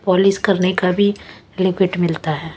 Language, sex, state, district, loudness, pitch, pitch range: Hindi, female, Chhattisgarh, Raipur, -17 LUFS, 185 Hz, 175-195 Hz